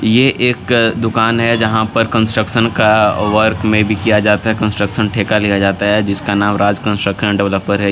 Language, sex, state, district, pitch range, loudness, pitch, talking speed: Hindi, male, Jharkhand, Garhwa, 100-110 Hz, -13 LUFS, 105 Hz, 190 wpm